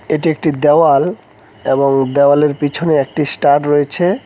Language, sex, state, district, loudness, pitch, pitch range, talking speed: Bengali, male, West Bengal, Cooch Behar, -13 LUFS, 145 Hz, 140-155 Hz, 125 wpm